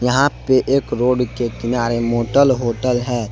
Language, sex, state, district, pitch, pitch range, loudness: Hindi, male, Jharkhand, Palamu, 125 Hz, 120-130 Hz, -18 LUFS